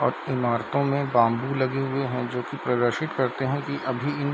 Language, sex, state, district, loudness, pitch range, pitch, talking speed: Hindi, male, Bihar, Darbhanga, -25 LUFS, 120-140 Hz, 130 Hz, 205 wpm